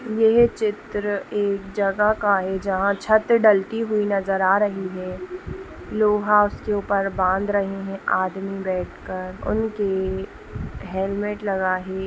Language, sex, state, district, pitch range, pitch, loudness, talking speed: Hindi, female, Bihar, Saharsa, 190-210 Hz, 200 Hz, -22 LUFS, 140 wpm